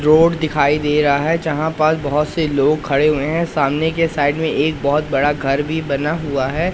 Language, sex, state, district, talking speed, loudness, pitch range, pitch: Hindi, male, Madhya Pradesh, Katni, 220 wpm, -17 LUFS, 145-160 Hz, 150 Hz